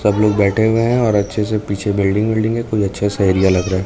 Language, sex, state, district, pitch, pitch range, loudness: Hindi, male, Chhattisgarh, Raipur, 105 Hz, 100-110 Hz, -16 LUFS